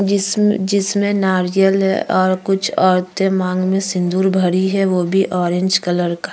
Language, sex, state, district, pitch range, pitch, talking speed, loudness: Hindi, female, Uttarakhand, Tehri Garhwal, 185-195 Hz, 190 Hz, 160 wpm, -16 LUFS